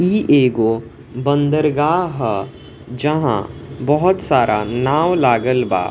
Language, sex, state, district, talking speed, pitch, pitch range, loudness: Bhojpuri, male, Bihar, East Champaran, 100 wpm, 140 Hz, 120-155 Hz, -17 LUFS